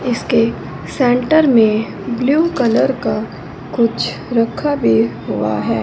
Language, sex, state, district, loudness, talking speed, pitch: Hindi, female, Punjab, Fazilka, -16 LUFS, 115 wpm, 235 Hz